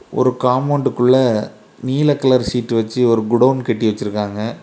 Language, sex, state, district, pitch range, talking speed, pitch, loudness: Tamil, male, Tamil Nadu, Kanyakumari, 115-130 Hz, 130 wpm, 125 Hz, -16 LUFS